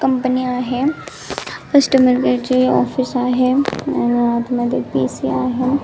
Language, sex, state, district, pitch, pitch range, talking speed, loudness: Marathi, female, Maharashtra, Nagpur, 250 Hz, 235-255 Hz, 125 wpm, -17 LUFS